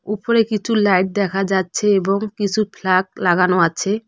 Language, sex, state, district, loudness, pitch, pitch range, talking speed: Bengali, female, West Bengal, Cooch Behar, -18 LUFS, 200 Hz, 190-210 Hz, 145 wpm